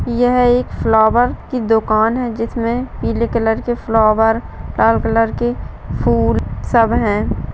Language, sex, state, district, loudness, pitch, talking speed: Hindi, female, Bihar, Madhepura, -16 LUFS, 225 Hz, 135 wpm